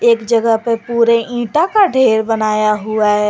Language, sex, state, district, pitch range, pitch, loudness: Hindi, female, Jharkhand, Garhwa, 215-240 Hz, 230 Hz, -14 LUFS